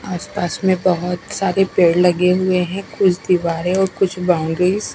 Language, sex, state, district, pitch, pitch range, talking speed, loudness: Hindi, female, Punjab, Fazilka, 180 Hz, 180-190 Hz, 180 wpm, -17 LUFS